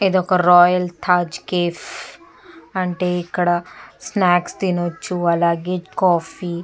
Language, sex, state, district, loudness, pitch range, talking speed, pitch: Telugu, female, Andhra Pradesh, Chittoor, -18 LUFS, 175-180 Hz, 100 wpm, 180 Hz